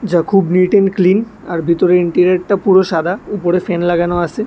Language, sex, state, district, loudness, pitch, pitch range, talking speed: Bengali, male, Tripura, West Tripura, -14 LUFS, 180 Hz, 175-195 Hz, 190 wpm